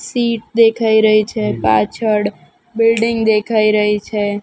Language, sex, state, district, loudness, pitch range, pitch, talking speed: Gujarati, female, Gujarat, Gandhinagar, -15 LUFS, 210-230 Hz, 215 Hz, 120 wpm